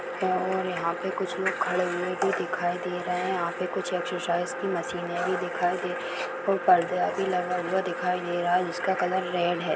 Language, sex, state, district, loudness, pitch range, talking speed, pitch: Hindi, male, Chhattisgarh, Bastar, -27 LUFS, 175-180 Hz, 215 wpm, 180 Hz